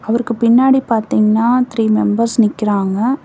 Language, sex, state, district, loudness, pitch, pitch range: Tamil, female, Tamil Nadu, Namakkal, -14 LUFS, 230 Hz, 215-245 Hz